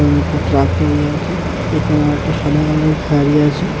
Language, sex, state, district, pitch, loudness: Bengali, male, Tripura, West Tripura, 145 Hz, -15 LUFS